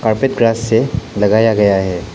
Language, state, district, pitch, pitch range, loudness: Hindi, Arunachal Pradesh, Papum Pare, 110 Hz, 105-115 Hz, -14 LUFS